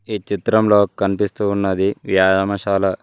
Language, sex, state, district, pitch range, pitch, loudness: Telugu, male, Telangana, Mahabubabad, 95-105 Hz, 100 Hz, -18 LUFS